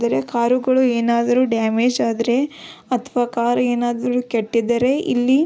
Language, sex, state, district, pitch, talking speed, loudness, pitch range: Kannada, female, Karnataka, Belgaum, 240 Hz, 120 wpm, -19 LUFS, 235-250 Hz